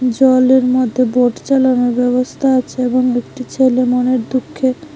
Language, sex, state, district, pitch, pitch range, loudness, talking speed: Bengali, female, Tripura, West Tripura, 255 Hz, 250-260 Hz, -14 LUFS, 135 wpm